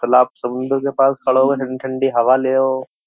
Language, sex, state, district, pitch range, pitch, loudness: Hindi, male, Uttar Pradesh, Jyotiba Phule Nagar, 130-135 Hz, 130 Hz, -17 LUFS